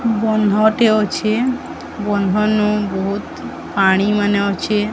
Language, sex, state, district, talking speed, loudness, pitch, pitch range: Odia, male, Odisha, Sambalpur, 110 wpm, -17 LUFS, 210 Hz, 200-220 Hz